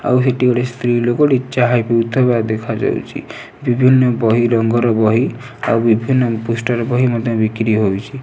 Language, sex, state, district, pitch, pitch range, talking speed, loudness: Odia, male, Odisha, Nuapada, 120 Hz, 115-125 Hz, 140 wpm, -15 LUFS